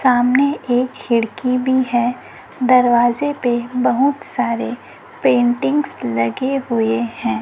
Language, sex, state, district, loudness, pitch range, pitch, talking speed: Hindi, female, Chhattisgarh, Raipur, -17 LUFS, 240-265 Hz, 250 Hz, 105 wpm